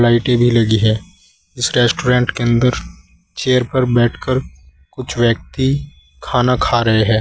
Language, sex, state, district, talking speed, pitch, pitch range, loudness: Hindi, male, Uttar Pradesh, Saharanpur, 140 wpm, 120 Hz, 110-125 Hz, -16 LUFS